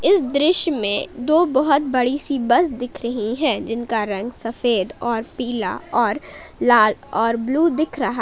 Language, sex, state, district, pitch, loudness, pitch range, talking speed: Hindi, female, Jharkhand, Palamu, 245 Hz, -19 LUFS, 230-290 Hz, 170 wpm